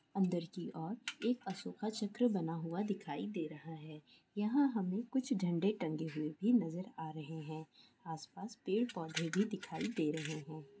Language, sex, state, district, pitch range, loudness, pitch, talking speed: Hindi, female, Bihar, Darbhanga, 160-210 Hz, -39 LUFS, 180 Hz, 165 wpm